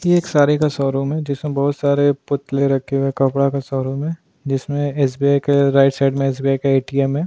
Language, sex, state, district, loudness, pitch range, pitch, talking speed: Hindi, male, Goa, North and South Goa, -18 LUFS, 135-145 Hz, 140 Hz, 215 wpm